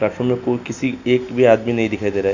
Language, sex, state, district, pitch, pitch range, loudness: Hindi, male, Uttar Pradesh, Hamirpur, 120 Hz, 105-125 Hz, -18 LUFS